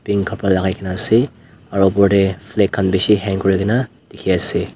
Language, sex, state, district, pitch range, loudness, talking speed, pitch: Nagamese, male, Nagaland, Dimapur, 95-105 Hz, -17 LUFS, 175 wpm, 100 Hz